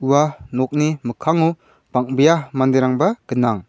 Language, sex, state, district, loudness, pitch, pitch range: Garo, male, Meghalaya, South Garo Hills, -18 LUFS, 135 Hz, 125-155 Hz